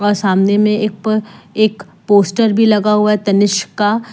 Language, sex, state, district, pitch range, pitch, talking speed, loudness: Hindi, female, Jharkhand, Deoghar, 200-215 Hz, 210 Hz, 190 wpm, -14 LUFS